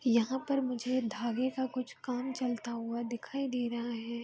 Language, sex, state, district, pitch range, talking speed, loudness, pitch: Hindi, female, Bihar, Araria, 235-255 Hz, 185 wpm, -35 LUFS, 245 Hz